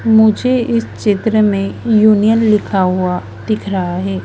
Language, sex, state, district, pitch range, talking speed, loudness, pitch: Hindi, female, Madhya Pradesh, Dhar, 190-220 Hz, 140 wpm, -14 LUFS, 210 Hz